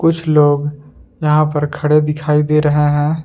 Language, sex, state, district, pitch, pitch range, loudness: Hindi, male, Jharkhand, Palamu, 150 Hz, 145-150 Hz, -14 LUFS